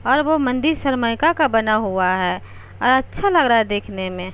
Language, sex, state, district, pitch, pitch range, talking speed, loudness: Hindi, female, Uttar Pradesh, Jalaun, 230 Hz, 185-285 Hz, 205 wpm, -18 LUFS